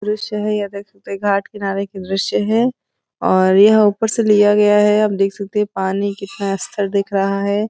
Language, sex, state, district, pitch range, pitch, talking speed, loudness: Hindi, female, Uttar Pradesh, Varanasi, 195-210 Hz, 200 Hz, 220 wpm, -16 LUFS